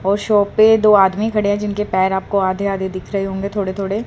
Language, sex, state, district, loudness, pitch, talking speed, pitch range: Hindi, female, Haryana, Rohtak, -16 LUFS, 200 Hz, 250 wpm, 195-210 Hz